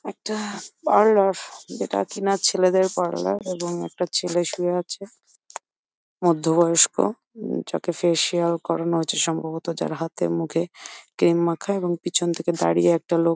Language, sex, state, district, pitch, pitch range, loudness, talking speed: Bengali, female, West Bengal, Jhargram, 175 Hz, 165-185 Hz, -22 LUFS, 125 wpm